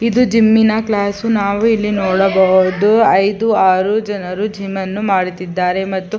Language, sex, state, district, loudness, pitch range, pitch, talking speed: Kannada, female, Karnataka, Chamarajanagar, -14 LUFS, 190-220 Hz, 200 Hz, 125 wpm